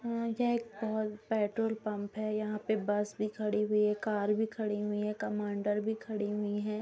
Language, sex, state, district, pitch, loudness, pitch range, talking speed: Hindi, female, Bihar, Gopalganj, 210 Hz, -34 LUFS, 210-220 Hz, 210 wpm